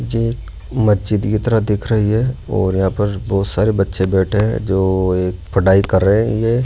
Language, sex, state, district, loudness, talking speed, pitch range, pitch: Hindi, male, Rajasthan, Jaipur, -16 LUFS, 200 wpm, 95-110 Hz, 105 Hz